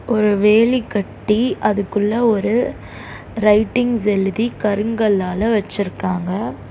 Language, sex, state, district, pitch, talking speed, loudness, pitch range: Tamil, female, Tamil Nadu, Chennai, 210 Hz, 80 wpm, -18 LUFS, 205-230 Hz